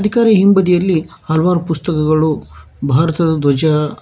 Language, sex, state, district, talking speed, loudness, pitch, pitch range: Kannada, male, Karnataka, Bangalore, 90 wpm, -14 LUFS, 165 Hz, 155-180 Hz